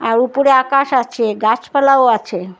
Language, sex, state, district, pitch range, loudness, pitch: Bengali, female, Assam, Hailakandi, 220-270 Hz, -14 LUFS, 250 Hz